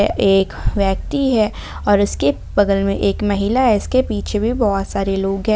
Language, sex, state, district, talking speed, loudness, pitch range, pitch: Hindi, female, Jharkhand, Ranchi, 195 wpm, -17 LUFS, 195-215 Hz, 200 Hz